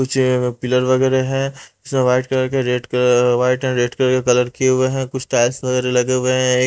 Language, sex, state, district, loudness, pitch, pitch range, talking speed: Hindi, male, Punjab, Pathankot, -17 LUFS, 130 Hz, 125-130 Hz, 250 wpm